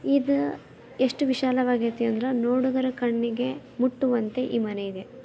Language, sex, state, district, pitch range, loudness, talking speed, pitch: Kannada, female, Karnataka, Belgaum, 235-260 Hz, -26 LUFS, 115 wpm, 250 Hz